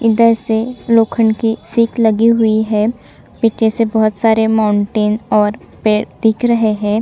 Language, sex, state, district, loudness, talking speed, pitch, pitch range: Hindi, female, Chhattisgarh, Sukma, -14 LUFS, 160 wpm, 220 Hz, 215-230 Hz